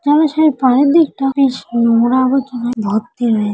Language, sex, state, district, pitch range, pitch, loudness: Bengali, female, West Bengal, Jalpaiguri, 235-285 Hz, 260 Hz, -14 LUFS